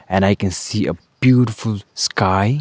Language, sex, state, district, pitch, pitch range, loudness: English, male, Arunachal Pradesh, Lower Dibang Valley, 110 Hz, 95-125 Hz, -18 LUFS